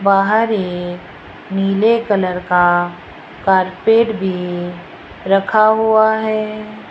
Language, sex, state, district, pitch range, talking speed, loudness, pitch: Hindi, female, Rajasthan, Jaipur, 180-215 Hz, 85 wpm, -15 LUFS, 195 Hz